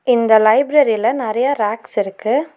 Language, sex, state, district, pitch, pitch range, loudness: Tamil, female, Tamil Nadu, Nilgiris, 230 Hz, 215-275 Hz, -15 LUFS